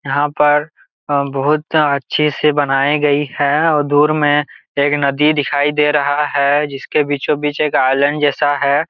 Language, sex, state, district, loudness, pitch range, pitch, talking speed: Hindi, male, Jharkhand, Jamtara, -15 LUFS, 140-150 Hz, 145 Hz, 170 wpm